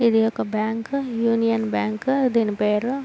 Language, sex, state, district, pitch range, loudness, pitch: Telugu, female, Andhra Pradesh, Srikakulam, 215-240 Hz, -22 LUFS, 230 Hz